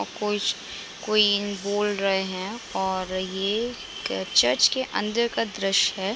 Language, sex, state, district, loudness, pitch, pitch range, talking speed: Hindi, female, Uttar Pradesh, Budaun, -24 LUFS, 205 Hz, 195-215 Hz, 145 wpm